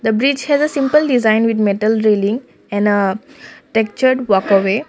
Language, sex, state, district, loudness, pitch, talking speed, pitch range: English, female, Assam, Kamrup Metropolitan, -15 LUFS, 220 Hz, 170 wpm, 205-265 Hz